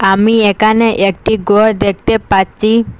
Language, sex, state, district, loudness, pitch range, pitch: Bengali, female, Assam, Hailakandi, -11 LUFS, 195-220 Hz, 215 Hz